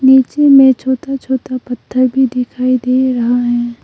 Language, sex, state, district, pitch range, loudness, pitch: Hindi, female, Arunachal Pradesh, Longding, 250-265 Hz, -13 LUFS, 255 Hz